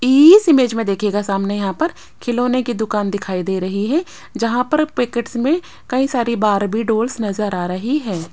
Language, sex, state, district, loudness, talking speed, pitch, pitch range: Hindi, female, Rajasthan, Jaipur, -17 LUFS, 185 wpm, 230 Hz, 200-255 Hz